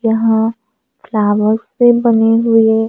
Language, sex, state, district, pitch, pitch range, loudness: Hindi, female, Maharashtra, Gondia, 225 Hz, 220-230 Hz, -13 LUFS